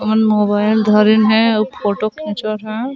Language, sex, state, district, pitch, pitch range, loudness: Chhattisgarhi, female, Chhattisgarh, Sarguja, 215 Hz, 210-220 Hz, -15 LUFS